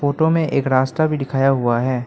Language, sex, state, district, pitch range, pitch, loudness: Hindi, male, Arunachal Pradesh, Lower Dibang Valley, 130-155 Hz, 135 Hz, -18 LUFS